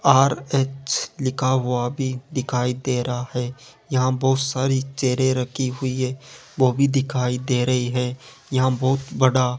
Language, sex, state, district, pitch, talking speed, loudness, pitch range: Hindi, male, Rajasthan, Jaipur, 130 Hz, 155 wpm, -22 LUFS, 125-135 Hz